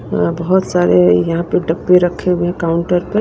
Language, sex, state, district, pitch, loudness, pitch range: Hindi, female, Punjab, Kapurthala, 175 Hz, -14 LUFS, 160-180 Hz